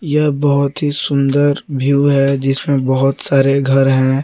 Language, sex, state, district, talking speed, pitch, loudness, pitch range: Hindi, male, Jharkhand, Garhwa, 155 wpm, 140 Hz, -14 LUFS, 135-145 Hz